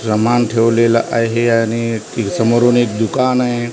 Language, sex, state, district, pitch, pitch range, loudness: Marathi, male, Maharashtra, Washim, 115 Hz, 115-120 Hz, -15 LUFS